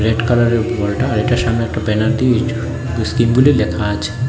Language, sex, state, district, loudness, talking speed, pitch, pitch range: Bengali, male, Tripura, West Tripura, -16 LUFS, 180 wpm, 115 Hz, 110-120 Hz